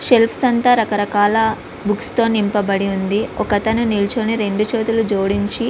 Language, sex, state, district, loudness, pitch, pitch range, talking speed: Telugu, female, Andhra Pradesh, Visakhapatnam, -17 LUFS, 215 Hz, 205-230 Hz, 135 wpm